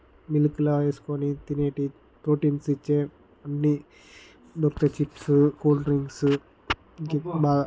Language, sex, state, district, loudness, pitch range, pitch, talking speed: Telugu, male, Telangana, Karimnagar, -26 LUFS, 145-150 Hz, 145 Hz, 85 wpm